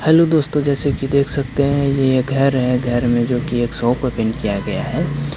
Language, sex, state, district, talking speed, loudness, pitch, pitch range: Hindi, male, Bihar, Kaimur, 245 wpm, -18 LUFS, 135 Hz, 125-140 Hz